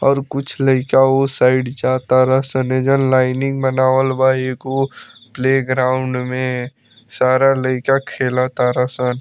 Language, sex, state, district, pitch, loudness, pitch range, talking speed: Bhojpuri, male, Bihar, Muzaffarpur, 130 Hz, -16 LUFS, 130-135 Hz, 115 wpm